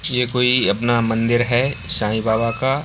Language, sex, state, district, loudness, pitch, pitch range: Hindi, male, Bihar, Bhagalpur, -18 LUFS, 120 Hz, 110-125 Hz